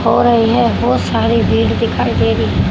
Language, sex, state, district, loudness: Hindi, female, Haryana, Rohtak, -14 LUFS